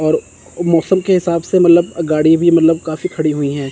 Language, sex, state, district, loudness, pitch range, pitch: Hindi, male, Chandigarh, Chandigarh, -14 LUFS, 155-175 Hz, 165 Hz